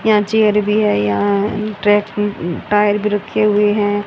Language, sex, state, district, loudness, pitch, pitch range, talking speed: Hindi, female, Haryana, Rohtak, -16 LUFS, 210 Hz, 205-210 Hz, 160 wpm